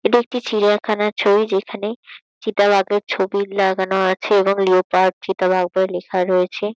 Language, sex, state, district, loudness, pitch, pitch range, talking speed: Bengali, female, West Bengal, Kolkata, -18 LUFS, 200 Hz, 190-210 Hz, 140 wpm